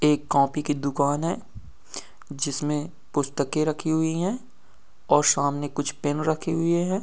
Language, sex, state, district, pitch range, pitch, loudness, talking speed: Hindi, male, Bihar, Gopalganj, 145-160 Hz, 150 Hz, -25 LUFS, 145 wpm